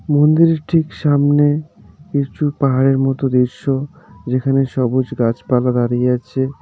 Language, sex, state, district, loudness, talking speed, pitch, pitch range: Bengali, male, West Bengal, Darjeeling, -16 LUFS, 120 wpm, 135 Hz, 130-145 Hz